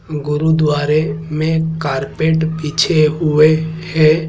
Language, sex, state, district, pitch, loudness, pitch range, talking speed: Hindi, male, Madhya Pradesh, Dhar, 155 Hz, -15 LUFS, 150-160 Hz, 85 wpm